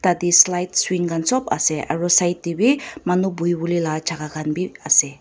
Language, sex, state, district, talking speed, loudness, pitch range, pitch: Nagamese, female, Nagaland, Dimapur, 205 wpm, -19 LUFS, 155-180 Hz, 175 Hz